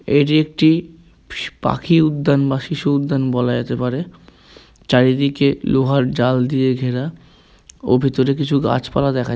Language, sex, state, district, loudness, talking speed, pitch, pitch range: Bengali, male, West Bengal, Kolkata, -17 LUFS, 130 wpm, 140 Hz, 130-150 Hz